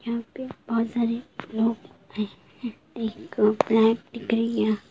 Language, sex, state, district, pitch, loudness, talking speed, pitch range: Hindi, female, Bihar, Darbhanga, 230 Hz, -26 LUFS, 135 wpm, 220-235 Hz